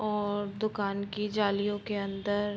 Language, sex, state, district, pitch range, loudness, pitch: Hindi, female, Bihar, Muzaffarpur, 200-210 Hz, -32 LUFS, 205 Hz